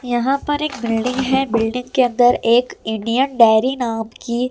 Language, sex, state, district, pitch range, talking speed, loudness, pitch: Hindi, female, Delhi, New Delhi, 230-260 Hz, 175 wpm, -17 LUFS, 245 Hz